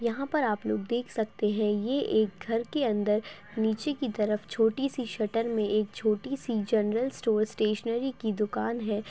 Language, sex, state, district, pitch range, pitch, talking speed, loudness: Hindi, female, Chhattisgarh, Kabirdham, 210-240 Hz, 220 Hz, 185 wpm, -29 LUFS